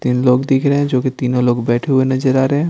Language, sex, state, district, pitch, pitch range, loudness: Hindi, male, Bihar, Patna, 130 Hz, 125-135 Hz, -15 LUFS